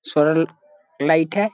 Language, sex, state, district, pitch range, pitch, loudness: Hindi, male, Bihar, Sitamarhi, 160-205 Hz, 165 Hz, -19 LUFS